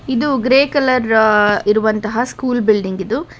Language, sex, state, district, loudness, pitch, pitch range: Kannada, female, Karnataka, Bangalore, -15 LUFS, 235 Hz, 215-260 Hz